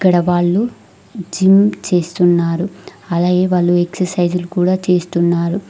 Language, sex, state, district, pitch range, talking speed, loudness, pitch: Telugu, female, Telangana, Mahabubabad, 175-185 Hz, 105 wpm, -15 LUFS, 180 Hz